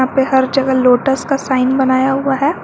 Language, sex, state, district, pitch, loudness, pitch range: Hindi, female, Jharkhand, Garhwa, 265 Hz, -14 LUFS, 260-270 Hz